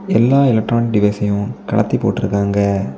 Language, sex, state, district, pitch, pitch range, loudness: Tamil, male, Tamil Nadu, Kanyakumari, 105 Hz, 100-115 Hz, -16 LUFS